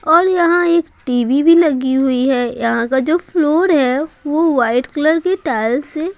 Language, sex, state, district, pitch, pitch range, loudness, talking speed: Hindi, female, Bihar, Patna, 300 Hz, 260-335 Hz, -15 LUFS, 195 wpm